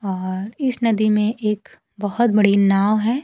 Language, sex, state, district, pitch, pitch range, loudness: Hindi, female, Bihar, Kaimur, 210 Hz, 200-230 Hz, -19 LUFS